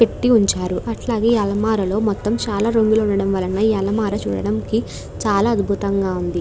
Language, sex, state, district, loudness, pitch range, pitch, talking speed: Telugu, female, Andhra Pradesh, Krishna, -19 LUFS, 195-220 Hz, 205 Hz, 150 wpm